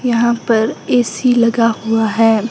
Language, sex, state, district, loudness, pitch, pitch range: Hindi, female, Himachal Pradesh, Shimla, -14 LUFS, 230 Hz, 225-240 Hz